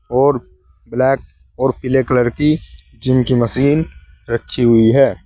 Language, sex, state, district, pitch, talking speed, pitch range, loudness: Hindi, male, Uttar Pradesh, Saharanpur, 125 Hz, 135 wpm, 115-135 Hz, -16 LUFS